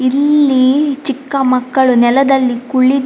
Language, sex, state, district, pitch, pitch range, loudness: Kannada, female, Karnataka, Dakshina Kannada, 265 Hz, 255-275 Hz, -12 LUFS